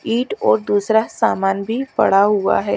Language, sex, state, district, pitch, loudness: Hindi, female, Chandigarh, Chandigarh, 205 Hz, -17 LUFS